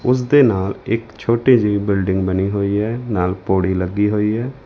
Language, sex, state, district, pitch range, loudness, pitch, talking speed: Punjabi, male, Punjab, Fazilka, 95-115 Hz, -17 LUFS, 105 Hz, 195 wpm